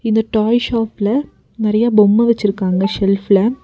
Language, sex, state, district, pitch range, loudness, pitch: Tamil, female, Tamil Nadu, Nilgiris, 200-230 Hz, -15 LUFS, 215 Hz